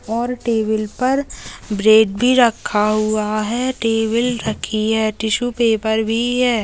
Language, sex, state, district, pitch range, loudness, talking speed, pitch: Hindi, female, Bihar, Purnia, 215-245 Hz, -17 LUFS, 135 wpm, 225 Hz